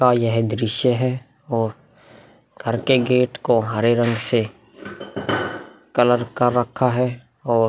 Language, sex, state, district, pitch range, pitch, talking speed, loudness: Hindi, male, Bihar, Vaishali, 115-125 Hz, 120 Hz, 140 wpm, -20 LUFS